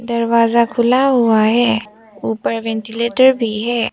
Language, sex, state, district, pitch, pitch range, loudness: Hindi, female, Arunachal Pradesh, Papum Pare, 230 Hz, 220-240 Hz, -15 LUFS